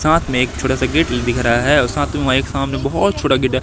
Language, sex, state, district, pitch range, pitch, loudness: Hindi, male, Madhya Pradesh, Katni, 130-150 Hz, 135 Hz, -16 LUFS